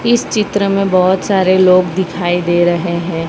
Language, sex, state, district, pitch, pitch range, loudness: Hindi, female, Gujarat, Valsad, 185 Hz, 175-195 Hz, -13 LUFS